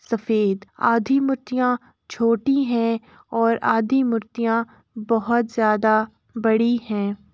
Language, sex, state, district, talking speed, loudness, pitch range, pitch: Hindi, female, Uttar Pradesh, Jalaun, 100 wpm, -21 LUFS, 220-240 Hz, 230 Hz